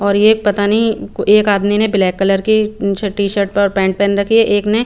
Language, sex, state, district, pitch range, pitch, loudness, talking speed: Hindi, female, Chandigarh, Chandigarh, 200-215 Hz, 205 Hz, -14 LUFS, 245 wpm